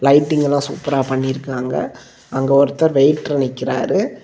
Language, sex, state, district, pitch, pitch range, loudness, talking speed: Tamil, male, Tamil Nadu, Kanyakumari, 140 Hz, 130-145 Hz, -17 LUFS, 125 wpm